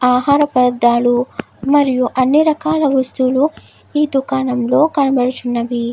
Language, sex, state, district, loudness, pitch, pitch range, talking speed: Telugu, female, Andhra Pradesh, Guntur, -15 LUFS, 260 Hz, 250-285 Hz, 90 wpm